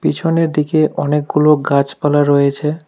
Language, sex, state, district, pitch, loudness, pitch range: Bengali, male, West Bengal, Alipurduar, 150 Hz, -14 LUFS, 145-155 Hz